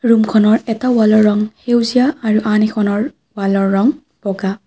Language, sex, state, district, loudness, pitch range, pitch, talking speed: Assamese, female, Assam, Kamrup Metropolitan, -15 LUFS, 210-235 Hz, 215 Hz, 140 wpm